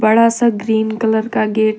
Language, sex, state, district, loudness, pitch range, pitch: Hindi, female, Jharkhand, Deoghar, -15 LUFS, 220-225 Hz, 220 Hz